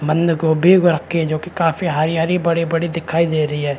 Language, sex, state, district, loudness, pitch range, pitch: Hindi, male, Chhattisgarh, Rajnandgaon, -17 LUFS, 155-170 Hz, 165 Hz